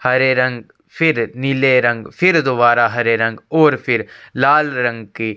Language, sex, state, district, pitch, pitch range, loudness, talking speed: Hindi, male, Chhattisgarh, Korba, 125 Hz, 115-135 Hz, -15 LUFS, 155 wpm